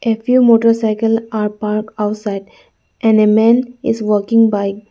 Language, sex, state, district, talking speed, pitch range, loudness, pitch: English, female, Arunachal Pradesh, Lower Dibang Valley, 160 wpm, 210-230 Hz, -14 LUFS, 220 Hz